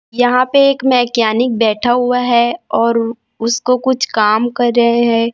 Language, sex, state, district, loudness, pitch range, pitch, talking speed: Hindi, female, Chhattisgarh, Raipur, -13 LUFS, 230-250 Hz, 240 Hz, 155 wpm